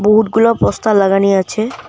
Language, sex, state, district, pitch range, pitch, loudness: Bengali, female, Assam, Kamrup Metropolitan, 195-220 Hz, 215 Hz, -13 LUFS